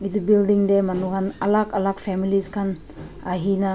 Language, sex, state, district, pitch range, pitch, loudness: Nagamese, female, Nagaland, Dimapur, 190-200 Hz, 195 Hz, -20 LUFS